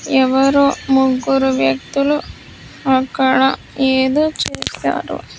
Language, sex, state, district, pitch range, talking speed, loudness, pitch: Telugu, female, Andhra Pradesh, Sri Satya Sai, 260-275 Hz, 65 wpm, -16 LUFS, 265 Hz